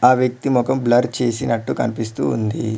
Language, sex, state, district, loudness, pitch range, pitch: Telugu, male, Telangana, Mahabubabad, -19 LUFS, 115-125 Hz, 120 Hz